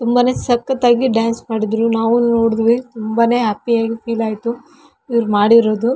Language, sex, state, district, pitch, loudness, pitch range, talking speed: Kannada, female, Karnataka, Raichur, 230 Hz, -16 LUFS, 225-245 Hz, 130 wpm